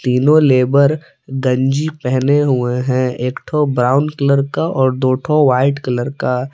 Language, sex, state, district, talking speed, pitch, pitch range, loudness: Hindi, male, Jharkhand, Palamu, 155 wpm, 135 Hz, 125-145 Hz, -15 LUFS